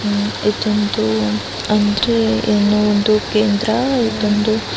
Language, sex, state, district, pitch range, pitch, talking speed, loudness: Kannada, female, Karnataka, Raichur, 205-220 Hz, 210 Hz, 100 wpm, -16 LUFS